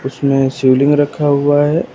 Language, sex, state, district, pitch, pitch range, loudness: Hindi, male, Uttar Pradesh, Lucknow, 145 Hz, 135-145 Hz, -13 LUFS